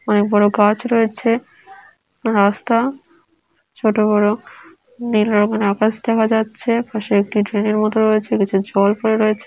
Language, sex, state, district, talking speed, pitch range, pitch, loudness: Bengali, female, West Bengal, Dakshin Dinajpur, 135 wpm, 210-230 Hz, 220 Hz, -17 LUFS